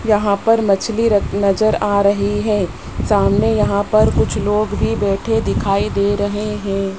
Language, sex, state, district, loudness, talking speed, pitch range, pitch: Hindi, male, Rajasthan, Jaipur, -16 LUFS, 165 wpm, 200-210 Hz, 205 Hz